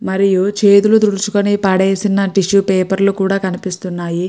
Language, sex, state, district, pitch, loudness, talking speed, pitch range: Telugu, female, Andhra Pradesh, Guntur, 195 Hz, -14 LUFS, 125 wpm, 190-200 Hz